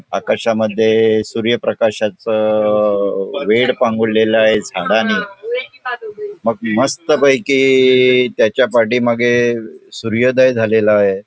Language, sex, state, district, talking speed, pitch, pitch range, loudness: Marathi, male, Goa, North and South Goa, 75 wpm, 115 Hz, 110-130 Hz, -14 LUFS